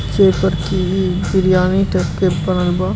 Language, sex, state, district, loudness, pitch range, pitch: Hindi, male, Bihar, East Champaran, -16 LUFS, 180-190 Hz, 185 Hz